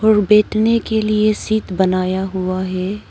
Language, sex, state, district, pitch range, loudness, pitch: Hindi, female, Arunachal Pradesh, Papum Pare, 185-215 Hz, -17 LUFS, 210 Hz